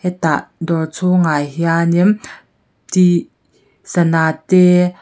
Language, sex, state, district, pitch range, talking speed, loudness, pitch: Mizo, female, Mizoram, Aizawl, 165-180 Hz, 85 wpm, -15 LUFS, 175 Hz